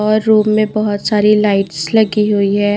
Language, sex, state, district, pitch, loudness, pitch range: Hindi, female, Himachal Pradesh, Shimla, 210 Hz, -13 LUFS, 205-215 Hz